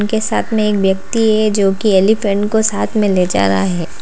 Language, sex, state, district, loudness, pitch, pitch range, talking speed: Hindi, female, Uttar Pradesh, Lalitpur, -14 LUFS, 205 Hz, 190-220 Hz, 225 wpm